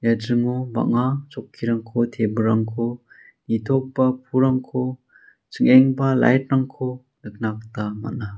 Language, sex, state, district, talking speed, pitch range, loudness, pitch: Garo, male, Meghalaya, South Garo Hills, 85 wpm, 115-130 Hz, -21 LUFS, 125 Hz